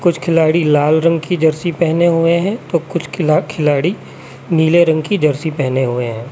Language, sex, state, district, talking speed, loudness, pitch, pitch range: Hindi, male, Chhattisgarh, Raipur, 190 wpm, -15 LUFS, 160 Hz, 150-170 Hz